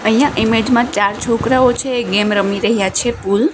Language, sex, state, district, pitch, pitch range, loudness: Gujarati, female, Gujarat, Gandhinagar, 225 Hz, 205-245 Hz, -15 LUFS